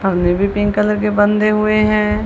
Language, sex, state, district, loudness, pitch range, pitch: Hindi, female, Punjab, Kapurthala, -15 LUFS, 205-215 Hz, 210 Hz